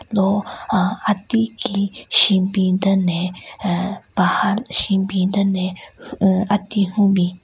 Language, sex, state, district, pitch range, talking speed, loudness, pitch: Rengma, female, Nagaland, Kohima, 185-205 Hz, 130 wpm, -18 LUFS, 195 Hz